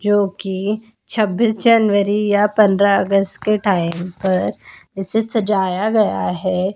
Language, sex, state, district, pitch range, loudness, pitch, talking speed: Hindi, female, Madhya Pradesh, Dhar, 190-215 Hz, -17 LUFS, 200 Hz, 125 wpm